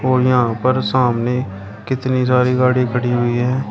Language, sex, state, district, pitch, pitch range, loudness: Hindi, male, Uttar Pradesh, Shamli, 125 Hz, 120-130 Hz, -17 LUFS